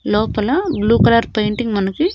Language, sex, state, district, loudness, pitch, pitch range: Telugu, female, Andhra Pradesh, Annamaya, -16 LUFS, 225 Hz, 210-255 Hz